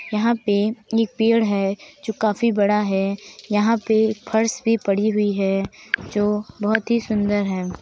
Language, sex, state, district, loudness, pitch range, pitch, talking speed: Hindi, female, Uttar Pradesh, Jalaun, -21 LUFS, 205-225 Hz, 215 Hz, 160 wpm